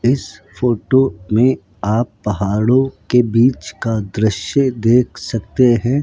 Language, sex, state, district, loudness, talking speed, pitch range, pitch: Hindi, male, Rajasthan, Jaipur, -16 LUFS, 120 wpm, 105-125 Hz, 115 Hz